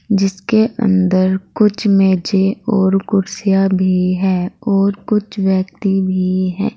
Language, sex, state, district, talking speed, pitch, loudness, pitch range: Hindi, female, Uttar Pradesh, Saharanpur, 115 wpm, 195 Hz, -15 LUFS, 185-205 Hz